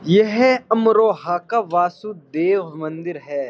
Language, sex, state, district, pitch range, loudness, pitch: Hindi, male, Uttar Pradesh, Jyotiba Phule Nagar, 165-220 Hz, -19 LUFS, 185 Hz